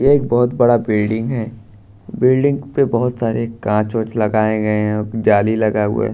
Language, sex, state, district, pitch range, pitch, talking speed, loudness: Hindi, male, Bihar, Katihar, 105-120 Hz, 110 Hz, 165 wpm, -17 LUFS